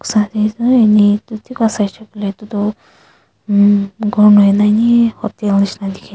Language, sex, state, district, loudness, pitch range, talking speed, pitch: Nagamese, female, Nagaland, Kohima, -13 LUFS, 205-220 Hz, 125 wpm, 210 Hz